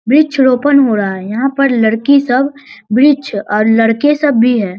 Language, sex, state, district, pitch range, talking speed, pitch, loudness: Hindi, male, Bihar, Lakhisarai, 220-280 Hz, 185 wpm, 255 Hz, -12 LUFS